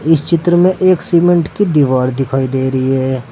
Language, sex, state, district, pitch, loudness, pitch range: Hindi, male, Uttar Pradesh, Saharanpur, 150 Hz, -13 LUFS, 130-175 Hz